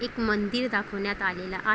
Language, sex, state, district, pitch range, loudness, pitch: Marathi, female, Maharashtra, Chandrapur, 200-225 Hz, -28 LUFS, 205 Hz